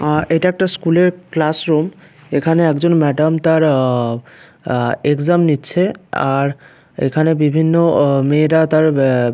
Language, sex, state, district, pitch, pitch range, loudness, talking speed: Bengali, male, West Bengal, Paschim Medinipur, 155 Hz, 145-165 Hz, -15 LUFS, 140 wpm